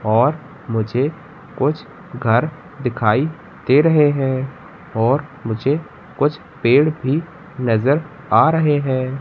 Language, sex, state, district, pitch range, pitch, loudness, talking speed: Hindi, male, Madhya Pradesh, Katni, 130-155 Hz, 140 Hz, -18 LUFS, 110 wpm